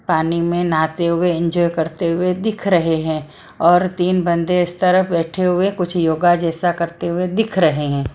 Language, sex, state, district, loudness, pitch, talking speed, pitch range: Hindi, female, Maharashtra, Mumbai Suburban, -17 LUFS, 175 Hz, 185 wpm, 165-180 Hz